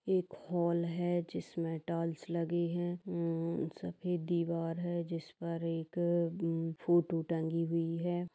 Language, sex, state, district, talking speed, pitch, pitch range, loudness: Hindi, female, Bihar, Purnia, 130 wpm, 170 Hz, 165-175 Hz, -36 LUFS